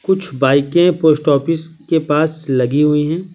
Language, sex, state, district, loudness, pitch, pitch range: Hindi, male, Bihar, Patna, -15 LUFS, 155 Hz, 145-165 Hz